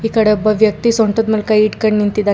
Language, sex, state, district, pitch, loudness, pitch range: Kannada, female, Karnataka, Bangalore, 215 Hz, -14 LUFS, 210-220 Hz